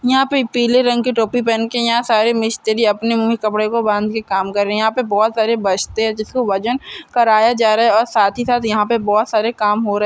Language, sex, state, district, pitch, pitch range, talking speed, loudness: Hindi, female, Chhattisgarh, Korba, 225 Hz, 215-240 Hz, 260 wpm, -16 LUFS